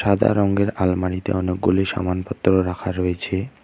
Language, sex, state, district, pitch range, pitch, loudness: Bengali, male, West Bengal, Alipurduar, 90-100 Hz, 95 Hz, -21 LUFS